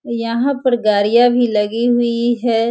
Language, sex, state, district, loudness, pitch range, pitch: Hindi, female, Bihar, Sitamarhi, -15 LUFS, 230-245 Hz, 235 Hz